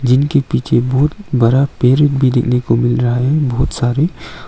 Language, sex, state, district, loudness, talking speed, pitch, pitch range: Hindi, male, Arunachal Pradesh, Longding, -14 LUFS, 175 wpm, 130 Hz, 120-140 Hz